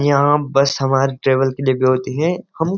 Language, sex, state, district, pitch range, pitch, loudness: Hindi, male, Uttarakhand, Uttarkashi, 130-145 Hz, 140 Hz, -17 LUFS